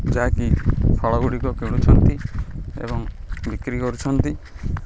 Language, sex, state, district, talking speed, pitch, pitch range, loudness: Odia, male, Odisha, Khordha, 100 wpm, 115 Hz, 100-125 Hz, -22 LUFS